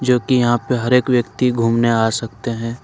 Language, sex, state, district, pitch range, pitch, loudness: Hindi, male, Jharkhand, Ranchi, 115-125 Hz, 120 Hz, -17 LUFS